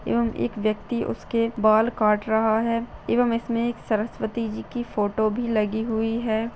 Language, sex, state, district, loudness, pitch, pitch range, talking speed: Hindi, female, Bihar, Madhepura, -24 LUFS, 220 Hz, 215-230 Hz, 175 wpm